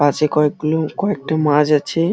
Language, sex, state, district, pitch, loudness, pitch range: Bengali, male, West Bengal, Dakshin Dinajpur, 150 Hz, -17 LUFS, 150-160 Hz